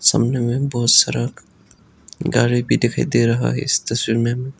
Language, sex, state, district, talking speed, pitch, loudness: Hindi, male, Arunachal Pradesh, Lower Dibang Valley, 170 wpm, 115 Hz, -18 LUFS